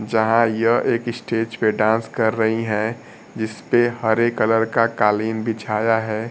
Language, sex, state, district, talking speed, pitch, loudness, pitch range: Hindi, male, Bihar, Kaimur, 150 wpm, 110 Hz, -20 LUFS, 110-115 Hz